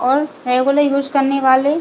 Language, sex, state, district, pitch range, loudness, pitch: Hindi, female, Chhattisgarh, Bilaspur, 260-285 Hz, -16 LUFS, 275 Hz